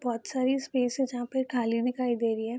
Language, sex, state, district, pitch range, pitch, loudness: Hindi, female, Bihar, Saharsa, 235-260 Hz, 245 Hz, -29 LUFS